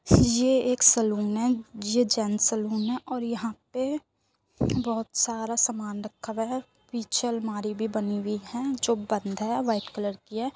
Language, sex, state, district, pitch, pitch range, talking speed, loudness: Hindi, female, Uttar Pradesh, Muzaffarnagar, 225 Hz, 215-245 Hz, 195 wpm, -26 LUFS